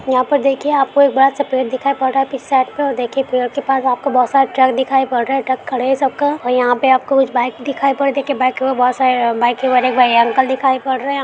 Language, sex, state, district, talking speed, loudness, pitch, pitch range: Hindi, male, Uttar Pradesh, Ghazipur, 295 wpm, -15 LUFS, 265 Hz, 255-275 Hz